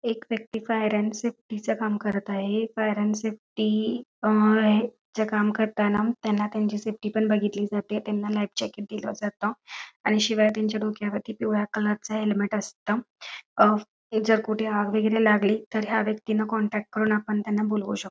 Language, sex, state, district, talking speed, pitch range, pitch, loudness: Marathi, female, Karnataka, Belgaum, 160 wpm, 210-220 Hz, 215 Hz, -26 LUFS